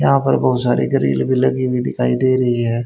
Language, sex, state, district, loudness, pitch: Hindi, male, Haryana, Charkhi Dadri, -17 LUFS, 120 Hz